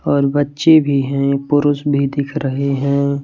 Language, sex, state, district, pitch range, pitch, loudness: Hindi, male, Chhattisgarh, Raipur, 140-145 Hz, 140 Hz, -16 LUFS